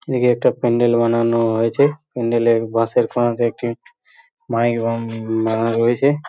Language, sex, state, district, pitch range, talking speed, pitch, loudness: Bengali, male, West Bengal, Purulia, 115-125 Hz, 145 wpm, 115 Hz, -18 LUFS